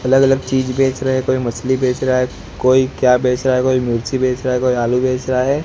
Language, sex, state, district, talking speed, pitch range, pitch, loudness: Hindi, male, Gujarat, Gandhinagar, 275 wpm, 125-130 Hz, 130 Hz, -16 LUFS